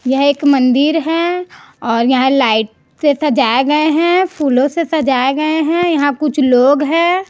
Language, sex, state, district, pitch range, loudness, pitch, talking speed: Hindi, female, Chhattisgarh, Raipur, 265-325 Hz, -13 LUFS, 290 Hz, 155 wpm